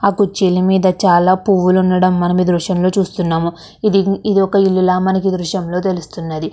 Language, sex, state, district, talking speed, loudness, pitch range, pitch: Telugu, female, Andhra Pradesh, Krishna, 155 wpm, -15 LUFS, 180-195 Hz, 185 Hz